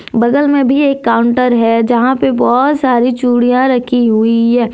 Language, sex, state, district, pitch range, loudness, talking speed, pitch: Hindi, female, Jharkhand, Deoghar, 235-265 Hz, -11 LUFS, 175 wpm, 245 Hz